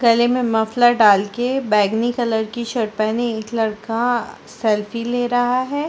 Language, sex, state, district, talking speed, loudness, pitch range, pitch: Hindi, female, Chhattisgarh, Sarguja, 175 wpm, -19 LUFS, 220-245 Hz, 230 Hz